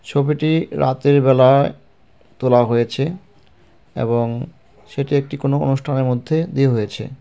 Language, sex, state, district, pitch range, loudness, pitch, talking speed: Bengali, male, West Bengal, Cooch Behar, 125-145 Hz, -18 LUFS, 135 Hz, 110 wpm